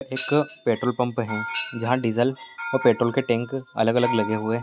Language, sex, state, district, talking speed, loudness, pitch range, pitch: Hindi, male, Bihar, Purnia, 170 wpm, -23 LUFS, 115-130 Hz, 120 Hz